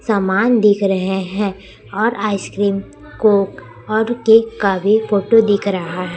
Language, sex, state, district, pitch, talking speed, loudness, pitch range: Hindi, female, Chhattisgarh, Raipur, 205 Hz, 145 wpm, -16 LUFS, 195-220 Hz